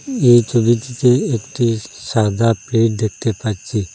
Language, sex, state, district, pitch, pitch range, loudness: Bengali, male, Assam, Hailakandi, 115 Hz, 110-120 Hz, -17 LUFS